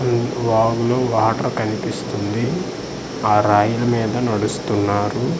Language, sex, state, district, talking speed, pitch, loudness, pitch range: Telugu, male, Andhra Pradesh, Manyam, 100 wpm, 110 Hz, -19 LUFS, 105-120 Hz